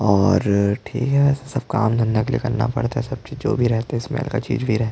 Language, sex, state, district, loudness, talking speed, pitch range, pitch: Hindi, male, Chhattisgarh, Jashpur, -21 LUFS, 295 wpm, 110-135 Hz, 120 Hz